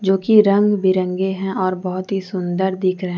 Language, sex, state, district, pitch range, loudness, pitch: Hindi, female, Jharkhand, Deoghar, 185-195 Hz, -18 LUFS, 190 Hz